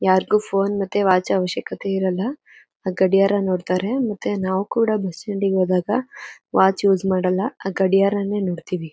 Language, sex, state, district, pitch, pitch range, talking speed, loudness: Kannada, female, Karnataka, Mysore, 195 Hz, 185-205 Hz, 140 wpm, -20 LUFS